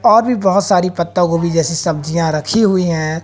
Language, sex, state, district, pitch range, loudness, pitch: Hindi, female, Haryana, Jhajjar, 165-190 Hz, -15 LUFS, 170 Hz